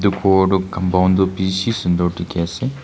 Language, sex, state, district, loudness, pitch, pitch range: Nagamese, male, Nagaland, Kohima, -18 LUFS, 95 Hz, 90-100 Hz